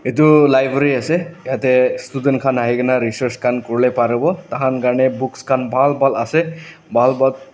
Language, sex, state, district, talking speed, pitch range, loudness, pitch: Nagamese, male, Nagaland, Dimapur, 190 wpm, 125-140 Hz, -16 LUFS, 130 Hz